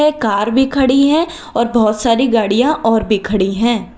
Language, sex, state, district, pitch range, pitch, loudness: Hindi, female, Uttar Pradesh, Lalitpur, 215-270 Hz, 235 Hz, -14 LUFS